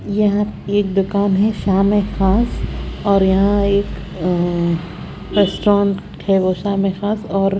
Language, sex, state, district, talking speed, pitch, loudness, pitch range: Hindi, female, Haryana, Charkhi Dadri, 140 wpm, 200 Hz, -17 LUFS, 190-205 Hz